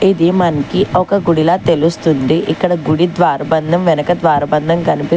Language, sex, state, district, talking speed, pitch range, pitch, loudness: Telugu, female, Telangana, Hyderabad, 140 wpm, 155-175 Hz, 170 Hz, -13 LUFS